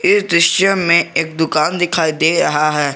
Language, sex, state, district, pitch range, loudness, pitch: Hindi, male, Jharkhand, Garhwa, 155-175 Hz, -14 LUFS, 165 Hz